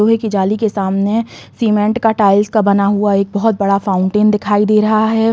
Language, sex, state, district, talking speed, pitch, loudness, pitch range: Hindi, female, Uttar Pradesh, Hamirpur, 215 wpm, 210 Hz, -14 LUFS, 200-220 Hz